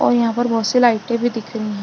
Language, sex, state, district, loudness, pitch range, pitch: Hindi, female, Uttar Pradesh, Budaun, -18 LUFS, 225-240 Hz, 230 Hz